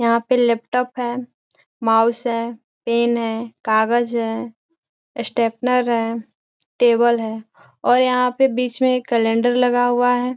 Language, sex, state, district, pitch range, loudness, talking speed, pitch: Hindi, female, Bihar, Gopalganj, 230-250 Hz, -19 LUFS, 140 wpm, 240 Hz